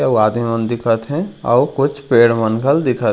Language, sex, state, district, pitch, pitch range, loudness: Chhattisgarhi, male, Chhattisgarh, Raigarh, 120 Hz, 115-140 Hz, -16 LUFS